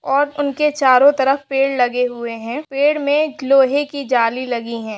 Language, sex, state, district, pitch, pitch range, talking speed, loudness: Hindi, female, Bihar, Saharsa, 270 Hz, 245-290 Hz, 180 wpm, -17 LUFS